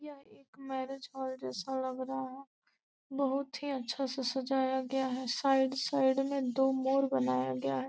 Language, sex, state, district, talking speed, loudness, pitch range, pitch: Hindi, female, Bihar, Gopalganj, 175 wpm, -33 LUFS, 260-270 Hz, 265 Hz